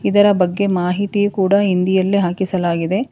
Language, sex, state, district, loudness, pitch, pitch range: Kannada, female, Karnataka, Bangalore, -16 LUFS, 190 Hz, 180-200 Hz